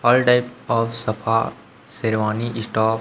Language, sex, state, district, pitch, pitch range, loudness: Hindi, male, Chhattisgarh, Raipur, 115 Hz, 110-120 Hz, -21 LUFS